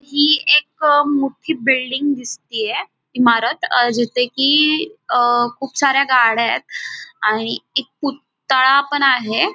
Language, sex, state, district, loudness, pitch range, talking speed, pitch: Marathi, female, Maharashtra, Dhule, -16 LUFS, 245-295 Hz, 115 wpm, 275 Hz